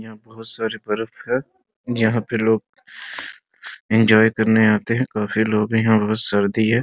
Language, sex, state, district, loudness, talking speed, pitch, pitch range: Hindi, male, Bihar, Muzaffarpur, -19 LUFS, 175 wpm, 110 Hz, 110-115 Hz